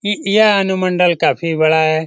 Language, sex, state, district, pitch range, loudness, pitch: Hindi, male, Bihar, Lakhisarai, 160-205 Hz, -14 LUFS, 180 Hz